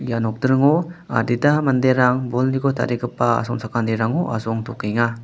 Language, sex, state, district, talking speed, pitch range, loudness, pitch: Garo, male, Meghalaya, West Garo Hills, 90 wpm, 115-135 Hz, -20 LUFS, 125 Hz